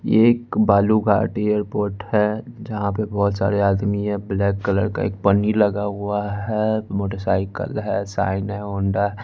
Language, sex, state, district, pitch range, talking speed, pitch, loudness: Hindi, male, Bihar, West Champaran, 100-105 Hz, 175 wpm, 100 Hz, -21 LUFS